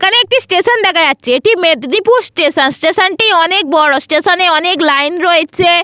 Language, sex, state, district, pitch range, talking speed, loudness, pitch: Bengali, female, West Bengal, Paschim Medinipur, 305-385 Hz, 175 wpm, -10 LUFS, 345 Hz